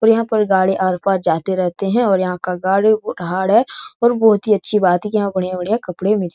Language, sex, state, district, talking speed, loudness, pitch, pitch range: Hindi, male, Bihar, Jahanabad, 255 wpm, -17 LUFS, 195 Hz, 185-215 Hz